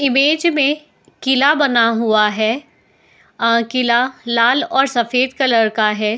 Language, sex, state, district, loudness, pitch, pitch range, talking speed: Hindi, female, Uttar Pradesh, Etah, -15 LUFS, 250 Hz, 230-275 Hz, 145 wpm